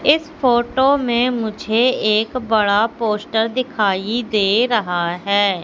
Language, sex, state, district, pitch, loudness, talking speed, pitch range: Hindi, female, Madhya Pradesh, Katni, 225 Hz, -17 LUFS, 115 wpm, 210-245 Hz